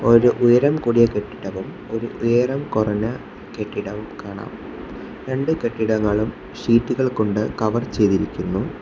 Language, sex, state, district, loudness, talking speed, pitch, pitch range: Malayalam, male, Kerala, Kollam, -20 LUFS, 100 wpm, 115 Hz, 105-120 Hz